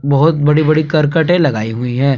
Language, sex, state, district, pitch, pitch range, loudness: Hindi, male, Jharkhand, Palamu, 150 Hz, 140-155 Hz, -13 LUFS